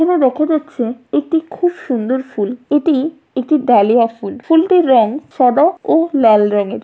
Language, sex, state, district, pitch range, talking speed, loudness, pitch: Bengali, female, West Bengal, Jalpaiguri, 235-320 Hz, 150 wpm, -14 LUFS, 270 Hz